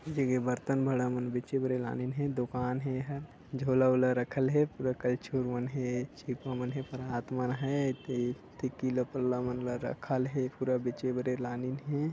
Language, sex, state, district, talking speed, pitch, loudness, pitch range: Chhattisgarhi, male, Chhattisgarh, Sarguja, 190 wpm, 130 Hz, -33 LUFS, 125-135 Hz